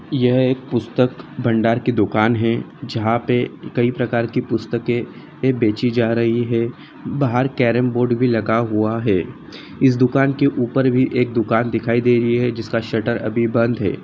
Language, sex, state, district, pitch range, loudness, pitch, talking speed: Hindi, male, Jharkhand, Sahebganj, 115-125 Hz, -19 LUFS, 120 Hz, 165 wpm